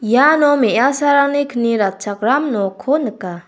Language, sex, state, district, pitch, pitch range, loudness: Garo, female, Meghalaya, South Garo Hills, 245 Hz, 210-285 Hz, -15 LUFS